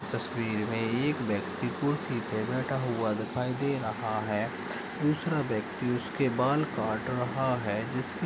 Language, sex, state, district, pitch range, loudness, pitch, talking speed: Hindi, male, Uttar Pradesh, Deoria, 110-130 Hz, -31 LUFS, 120 Hz, 140 wpm